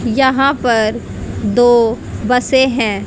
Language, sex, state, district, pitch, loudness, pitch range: Hindi, female, Haryana, Jhajjar, 240 Hz, -14 LUFS, 230-265 Hz